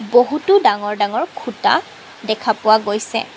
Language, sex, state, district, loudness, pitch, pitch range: Assamese, female, Assam, Kamrup Metropolitan, -17 LUFS, 220 Hz, 215-305 Hz